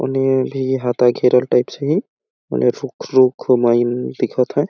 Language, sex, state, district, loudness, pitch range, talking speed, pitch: Awadhi, male, Chhattisgarh, Balrampur, -17 LUFS, 125-135 Hz, 155 wpm, 130 Hz